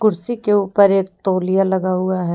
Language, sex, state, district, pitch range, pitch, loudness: Hindi, female, Jharkhand, Deoghar, 185-200 Hz, 190 Hz, -17 LUFS